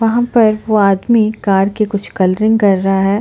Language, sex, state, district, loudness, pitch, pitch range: Hindi, female, Chhattisgarh, Bastar, -13 LUFS, 210 Hz, 195-220 Hz